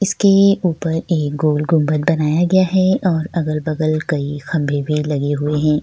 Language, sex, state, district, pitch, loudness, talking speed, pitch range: Hindi, female, Bihar, Kishanganj, 155 Hz, -17 LUFS, 165 wpm, 150-175 Hz